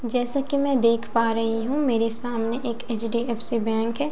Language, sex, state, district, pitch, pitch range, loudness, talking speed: Hindi, female, Bihar, Katihar, 235 Hz, 230-250 Hz, -20 LUFS, 190 wpm